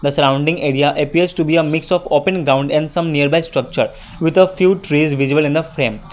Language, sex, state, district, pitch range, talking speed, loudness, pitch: English, male, Assam, Kamrup Metropolitan, 145-170 Hz, 215 wpm, -16 LUFS, 155 Hz